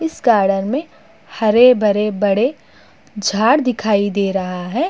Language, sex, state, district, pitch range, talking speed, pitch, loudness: Hindi, female, Uttar Pradesh, Budaun, 200-250 Hz, 125 wpm, 215 Hz, -16 LUFS